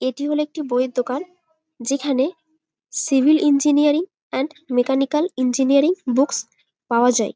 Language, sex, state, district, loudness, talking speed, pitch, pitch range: Bengali, female, West Bengal, Malda, -20 LUFS, 130 wpm, 280 Hz, 255-310 Hz